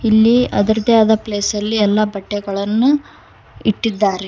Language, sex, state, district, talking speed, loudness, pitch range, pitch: Kannada, female, Karnataka, Koppal, 110 wpm, -16 LUFS, 205-220 Hz, 215 Hz